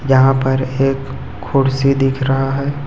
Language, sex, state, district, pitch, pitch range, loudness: Hindi, male, Chhattisgarh, Raipur, 135 Hz, 130-135 Hz, -16 LUFS